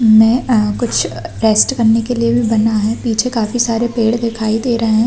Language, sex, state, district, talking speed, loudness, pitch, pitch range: Hindi, female, Chhattisgarh, Rajnandgaon, 215 wpm, -14 LUFS, 230 Hz, 220-235 Hz